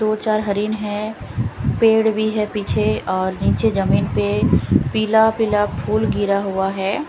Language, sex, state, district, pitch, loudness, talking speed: Hindi, female, Punjab, Fazilka, 200 Hz, -19 LUFS, 150 wpm